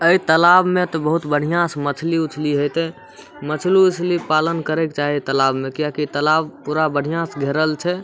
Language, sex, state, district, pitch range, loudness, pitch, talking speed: Maithili, male, Bihar, Samastipur, 145-170 Hz, -18 LUFS, 155 Hz, 195 wpm